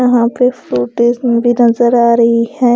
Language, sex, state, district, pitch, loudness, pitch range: Hindi, female, Punjab, Pathankot, 240 Hz, -12 LUFS, 235-245 Hz